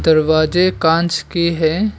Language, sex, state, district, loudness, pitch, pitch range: Hindi, male, Arunachal Pradesh, Longding, -15 LUFS, 165 Hz, 160-175 Hz